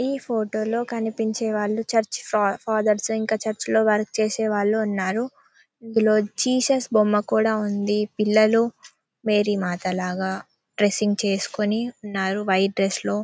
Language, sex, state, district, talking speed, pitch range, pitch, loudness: Telugu, female, Telangana, Karimnagar, 125 wpm, 205-225 Hz, 215 Hz, -23 LUFS